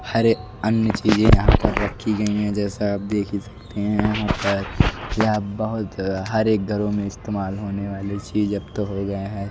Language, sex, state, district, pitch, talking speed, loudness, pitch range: Hindi, male, Odisha, Nuapada, 105 Hz, 195 wpm, -22 LUFS, 100-110 Hz